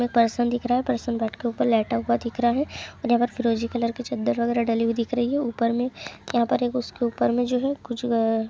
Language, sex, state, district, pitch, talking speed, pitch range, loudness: Hindi, female, Uttar Pradesh, Etah, 240 Hz, 190 wpm, 230-245 Hz, -24 LUFS